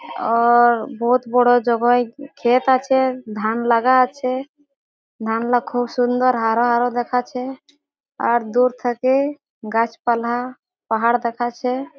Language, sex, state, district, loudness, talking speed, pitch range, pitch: Bengali, female, West Bengal, Jhargram, -19 LUFS, 115 wpm, 235-260 Hz, 245 Hz